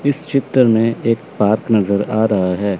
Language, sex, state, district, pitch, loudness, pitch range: Hindi, male, Chandigarh, Chandigarh, 110 Hz, -16 LUFS, 100-125 Hz